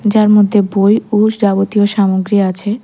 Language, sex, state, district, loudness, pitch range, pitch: Bengali, female, Tripura, West Tripura, -12 LUFS, 200-210 Hz, 205 Hz